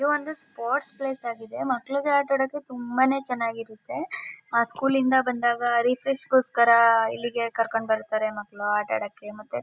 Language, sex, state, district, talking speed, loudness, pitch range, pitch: Kannada, female, Karnataka, Mysore, 130 wpm, -25 LUFS, 230-275 Hz, 245 Hz